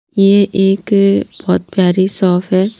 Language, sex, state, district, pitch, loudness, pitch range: Hindi, female, Punjab, Pathankot, 195 Hz, -13 LUFS, 185-200 Hz